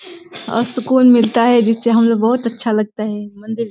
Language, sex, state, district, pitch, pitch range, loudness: Hindi, female, Uttar Pradesh, Deoria, 230 Hz, 225-245 Hz, -15 LUFS